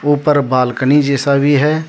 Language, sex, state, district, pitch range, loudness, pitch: Hindi, male, Jharkhand, Deoghar, 140-145 Hz, -13 LUFS, 145 Hz